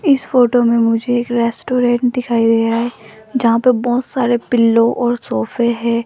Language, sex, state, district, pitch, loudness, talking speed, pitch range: Hindi, female, Rajasthan, Jaipur, 240 Hz, -15 LUFS, 180 wpm, 230-245 Hz